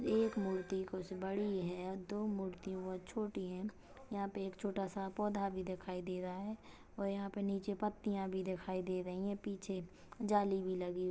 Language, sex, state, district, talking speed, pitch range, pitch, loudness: Hindi, female, Chhattisgarh, Kabirdham, 190 wpm, 185-205 Hz, 195 Hz, -41 LUFS